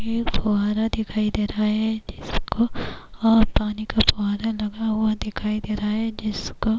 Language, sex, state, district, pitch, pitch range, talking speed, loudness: Urdu, female, Bihar, Kishanganj, 215 Hz, 210-225 Hz, 185 wpm, -23 LUFS